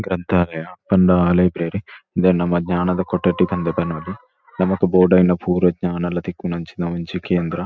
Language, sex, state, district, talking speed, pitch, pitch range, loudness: Tulu, male, Karnataka, Dakshina Kannada, 125 wpm, 90 Hz, 85-90 Hz, -19 LUFS